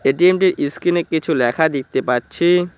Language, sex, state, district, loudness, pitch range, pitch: Bengali, male, West Bengal, Cooch Behar, -17 LUFS, 135-175 Hz, 160 Hz